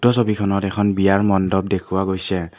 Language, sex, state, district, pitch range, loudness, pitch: Assamese, male, Assam, Kamrup Metropolitan, 95-100 Hz, -19 LUFS, 100 Hz